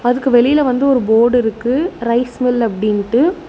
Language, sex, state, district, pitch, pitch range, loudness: Tamil, female, Tamil Nadu, Nilgiris, 245 Hz, 235-265 Hz, -14 LUFS